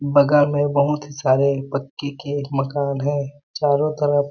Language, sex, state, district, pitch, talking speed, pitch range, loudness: Hindi, male, Chhattisgarh, Balrampur, 145 Hz, 165 wpm, 140-145 Hz, -20 LUFS